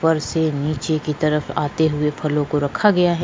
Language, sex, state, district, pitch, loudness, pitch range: Hindi, female, Goa, North and South Goa, 155 Hz, -20 LUFS, 150-160 Hz